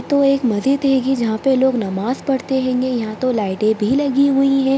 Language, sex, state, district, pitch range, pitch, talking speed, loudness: Hindi, female, Bihar, Darbhanga, 230-275 Hz, 260 Hz, 215 wpm, -17 LUFS